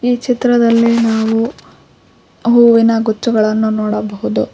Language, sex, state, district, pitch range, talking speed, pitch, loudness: Kannada, female, Karnataka, Koppal, 215-235 Hz, 80 wpm, 230 Hz, -13 LUFS